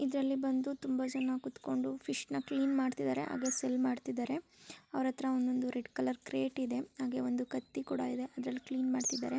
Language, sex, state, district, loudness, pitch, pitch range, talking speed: Kannada, female, Karnataka, Mysore, -36 LUFS, 255 Hz, 245-265 Hz, 180 wpm